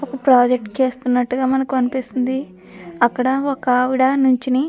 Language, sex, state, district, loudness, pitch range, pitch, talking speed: Telugu, female, Andhra Pradesh, Krishna, -18 LUFS, 250-265 Hz, 260 Hz, 155 wpm